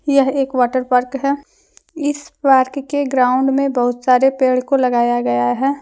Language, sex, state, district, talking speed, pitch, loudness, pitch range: Hindi, female, Jharkhand, Deoghar, 175 wpm, 265 Hz, -16 LUFS, 250-275 Hz